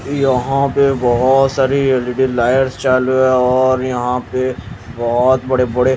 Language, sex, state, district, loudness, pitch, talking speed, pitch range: Hindi, male, Odisha, Malkangiri, -15 LUFS, 130 Hz, 140 wpm, 125-135 Hz